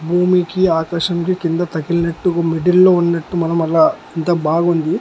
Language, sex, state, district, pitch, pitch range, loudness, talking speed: Telugu, male, Andhra Pradesh, Annamaya, 170 Hz, 165-180 Hz, -16 LUFS, 145 wpm